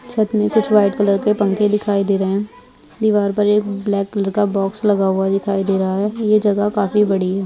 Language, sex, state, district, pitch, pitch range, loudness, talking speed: Hindi, female, Bihar, Purnia, 205 Hz, 195-210 Hz, -17 LUFS, 255 wpm